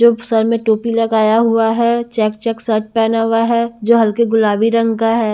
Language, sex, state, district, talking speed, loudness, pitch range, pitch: Hindi, female, Haryana, Charkhi Dadri, 215 wpm, -14 LUFS, 220-230 Hz, 225 Hz